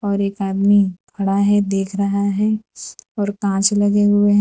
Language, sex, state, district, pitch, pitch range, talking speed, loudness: Hindi, female, Gujarat, Valsad, 200 Hz, 195-205 Hz, 175 wpm, -18 LUFS